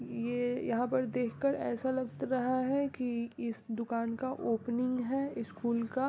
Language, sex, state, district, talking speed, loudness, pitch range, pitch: Hindi, female, Bihar, East Champaran, 185 wpm, -34 LUFS, 235-260 Hz, 245 Hz